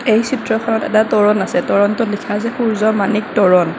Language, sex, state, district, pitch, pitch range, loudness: Assamese, female, Assam, Kamrup Metropolitan, 215 Hz, 205-230 Hz, -15 LUFS